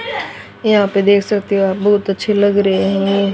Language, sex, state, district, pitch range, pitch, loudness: Hindi, female, Haryana, Jhajjar, 195-205 Hz, 200 Hz, -15 LUFS